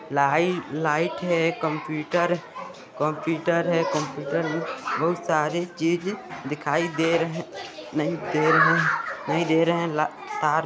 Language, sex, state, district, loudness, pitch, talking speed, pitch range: Hindi, male, Chhattisgarh, Sarguja, -24 LUFS, 165 Hz, 120 wpm, 155-170 Hz